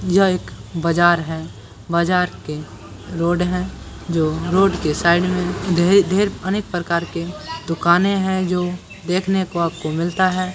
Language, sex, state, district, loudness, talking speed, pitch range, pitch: Hindi, female, Bihar, Purnia, -19 LUFS, 155 wpm, 170-185 Hz, 175 Hz